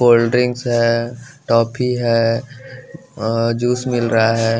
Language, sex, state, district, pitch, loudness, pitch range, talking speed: Hindi, male, Bihar, West Champaran, 120 Hz, -17 LUFS, 115-125 Hz, 115 wpm